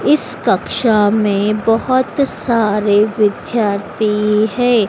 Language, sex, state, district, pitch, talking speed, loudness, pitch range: Hindi, female, Madhya Pradesh, Dhar, 215 Hz, 85 wpm, -15 LUFS, 210-235 Hz